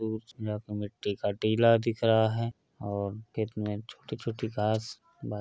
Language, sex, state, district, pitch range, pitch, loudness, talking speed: Hindi, male, Uttar Pradesh, Varanasi, 105-115 Hz, 110 Hz, -30 LUFS, 155 wpm